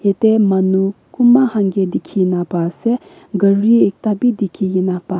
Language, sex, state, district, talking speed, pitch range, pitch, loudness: Nagamese, female, Nagaland, Kohima, 185 wpm, 190-220 Hz, 200 Hz, -15 LUFS